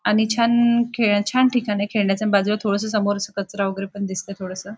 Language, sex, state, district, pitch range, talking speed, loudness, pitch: Marathi, female, Maharashtra, Nagpur, 200-220 Hz, 200 wpm, -21 LUFS, 205 Hz